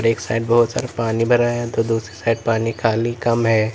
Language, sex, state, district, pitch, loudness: Hindi, male, Uttar Pradesh, Lalitpur, 115 Hz, -19 LUFS